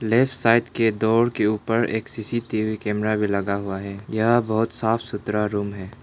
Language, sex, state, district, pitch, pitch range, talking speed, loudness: Hindi, male, Arunachal Pradesh, Lower Dibang Valley, 110 Hz, 105-115 Hz, 180 wpm, -23 LUFS